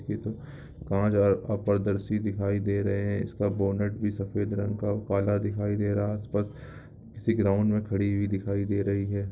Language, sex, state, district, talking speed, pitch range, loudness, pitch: Hindi, male, Bihar, Darbhanga, 200 wpm, 100-105 Hz, -28 LUFS, 100 Hz